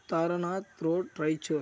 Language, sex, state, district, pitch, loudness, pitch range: Kannada, male, Karnataka, Raichur, 170 Hz, -31 LUFS, 155-180 Hz